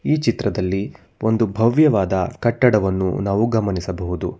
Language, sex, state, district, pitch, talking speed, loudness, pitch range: Kannada, male, Karnataka, Bangalore, 100 Hz, 95 wpm, -19 LUFS, 95-115 Hz